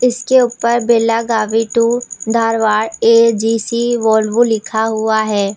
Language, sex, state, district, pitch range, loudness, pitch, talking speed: Hindi, female, Uttar Pradesh, Lucknow, 220-235 Hz, -14 LUFS, 225 Hz, 110 wpm